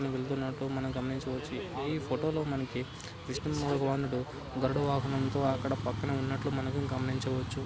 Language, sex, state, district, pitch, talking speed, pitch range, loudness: Telugu, male, Andhra Pradesh, Guntur, 135 Hz, 125 wpm, 130-140 Hz, -33 LUFS